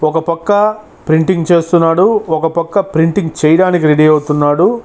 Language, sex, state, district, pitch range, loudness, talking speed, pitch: Telugu, male, Andhra Pradesh, Chittoor, 160-185 Hz, -12 LUFS, 125 wpm, 165 Hz